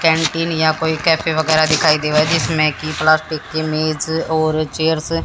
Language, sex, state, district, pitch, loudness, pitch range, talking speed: Hindi, female, Haryana, Jhajjar, 155 Hz, -16 LUFS, 155-160 Hz, 170 wpm